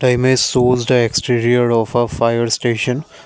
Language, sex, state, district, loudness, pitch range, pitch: English, male, Assam, Kamrup Metropolitan, -15 LUFS, 115-125 Hz, 120 Hz